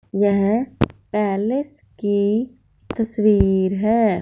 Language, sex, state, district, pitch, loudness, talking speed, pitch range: Hindi, female, Punjab, Fazilka, 210 Hz, -20 LUFS, 70 wpm, 200-225 Hz